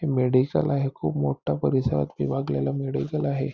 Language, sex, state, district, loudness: Marathi, male, Maharashtra, Nagpur, -25 LUFS